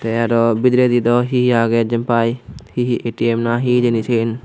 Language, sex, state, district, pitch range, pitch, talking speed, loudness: Chakma, male, Tripura, Unakoti, 115-125 Hz, 115 Hz, 175 wpm, -16 LUFS